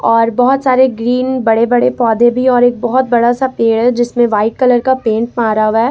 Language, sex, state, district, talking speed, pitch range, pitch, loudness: Hindi, female, Jharkhand, Ranchi, 235 wpm, 230-255 Hz, 240 Hz, -12 LUFS